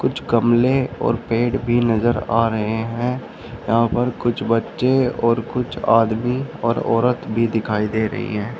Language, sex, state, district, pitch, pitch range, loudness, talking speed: Hindi, male, Uttar Pradesh, Shamli, 115 Hz, 115-125 Hz, -19 LUFS, 160 wpm